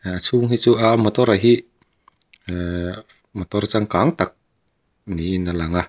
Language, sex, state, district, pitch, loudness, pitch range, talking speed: Mizo, male, Mizoram, Aizawl, 100 Hz, -19 LUFS, 90-115 Hz, 175 wpm